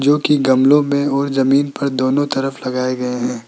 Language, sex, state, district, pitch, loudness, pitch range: Hindi, male, Rajasthan, Jaipur, 135 Hz, -16 LUFS, 130-140 Hz